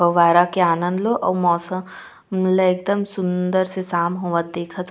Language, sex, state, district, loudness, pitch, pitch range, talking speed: Chhattisgarhi, female, Chhattisgarh, Raigarh, -20 LUFS, 180 Hz, 175-185 Hz, 145 wpm